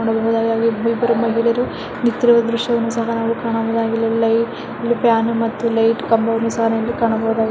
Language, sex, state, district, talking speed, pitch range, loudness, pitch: Kannada, female, Karnataka, Mysore, 130 wpm, 225-230 Hz, -18 LUFS, 230 Hz